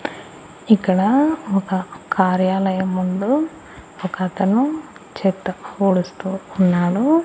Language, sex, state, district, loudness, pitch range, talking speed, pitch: Telugu, female, Andhra Pradesh, Annamaya, -19 LUFS, 185-225 Hz, 65 wpm, 195 Hz